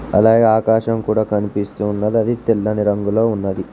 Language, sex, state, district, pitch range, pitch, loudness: Telugu, male, Telangana, Mahabubabad, 105-115 Hz, 110 Hz, -17 LUFS